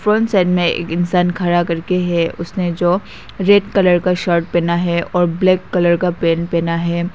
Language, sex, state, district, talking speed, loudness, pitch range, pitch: Hindi, female, Nagaland, Kohima, 185 wpm, -16 LUFS, 170-180 Hz, 175 Hz